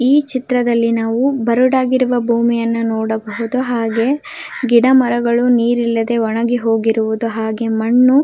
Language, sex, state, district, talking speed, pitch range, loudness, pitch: Kannada, female, Karnataka, Belgaum, 100 wpm, 225-255 Hz, -15 LUFS, 235 Hz